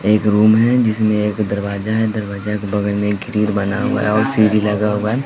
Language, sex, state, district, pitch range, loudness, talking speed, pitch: Hindi, male, Bihar, West Champaran, 105-110 Hz, -17 LUFS, 240 wpm, 105 Hz